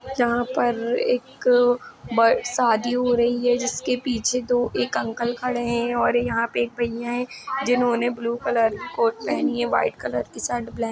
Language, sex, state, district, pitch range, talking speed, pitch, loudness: Hindi, female, Uttar Pradesh, Jalaun, 235-245 Hz, 180 wpm, 240 Hz, -23 LUFS